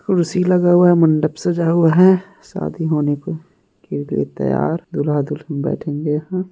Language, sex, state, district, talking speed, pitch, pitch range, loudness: Hindi, male, Bihar, Muzaffarpur, 155 wpm, 165 Hz, 150-180 Hz, -17 LUFS